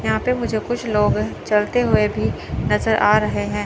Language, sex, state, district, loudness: Hindi, female, Chandigarh, Chandigarh, -19 LUFS